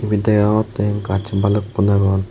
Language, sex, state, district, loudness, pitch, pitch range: Chakma, female, Tripura, West Tripura, -17 LUFS, 105 Hz, 100-105 Hz